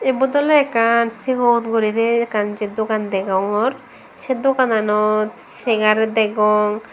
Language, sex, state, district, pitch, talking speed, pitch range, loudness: Chakma, female, Tripura, Dhalai, 225 Hz, 130 wpm, 215-250 Hz, -18 LUFS